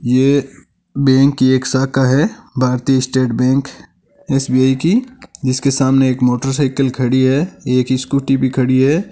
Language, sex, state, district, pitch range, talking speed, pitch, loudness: Hindi, male, Rajasthan, Nagaur, 130-140 Hz, 150 wpm, 135 Hz, -15 LUFS